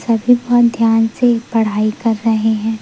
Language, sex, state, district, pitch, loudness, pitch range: Hindi, female, Madhya Pradesh, Umaria, 225 Hz, -14 LUFS, 220-235 Hz